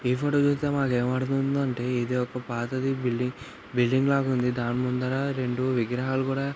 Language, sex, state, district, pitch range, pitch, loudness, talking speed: Telugu, male, Andhra Pradesh, Anantapur, 125-135 Hz, 130 Hz, -26 LUFS, 175 wpm